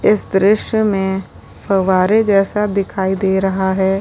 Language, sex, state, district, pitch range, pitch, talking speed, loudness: Hindi, female, Uttar Pradesh, Lalitpur, 190-210 Hz, 195 Hz, 135 wpm, -15 LUFS